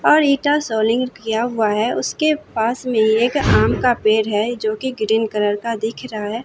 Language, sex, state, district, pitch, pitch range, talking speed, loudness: Hindi, female, Bihar, Katihar, 225 Hz, 220-250 Hz, 205 wpm, -18 LUFS